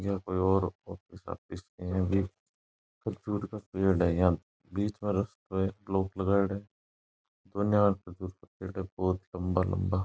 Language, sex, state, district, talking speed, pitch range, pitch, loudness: Marwari, male, Rajasthan, Nagaur, 165 wpm, 90-100 Hz, 95 Hz, -31 LUFS